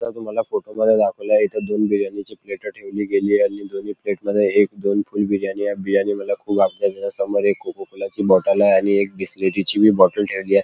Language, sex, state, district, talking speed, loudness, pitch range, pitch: Marathi, male, Maharashtra, Chandrapur, 205 wpm, -19 LUFS, 100-105 Hz, 100 Hz